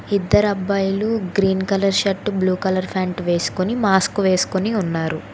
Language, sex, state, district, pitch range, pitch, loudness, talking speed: Telugu, female, Telangana, Hyderabad, 185-200 Hz, 190 Hz, -19 LUFS, 125 wpm